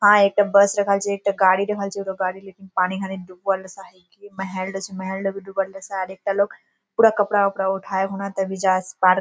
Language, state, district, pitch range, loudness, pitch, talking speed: Surjapuri, Bihar, Kishanganj, 190-200 Hz, -21 LUFS, 195 Hz, 245 wpm